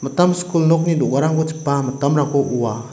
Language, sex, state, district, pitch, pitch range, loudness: Garo, male, Meghalaya, West Garo Hills, 140 Hz, 135-165 Hz, -18 LUFS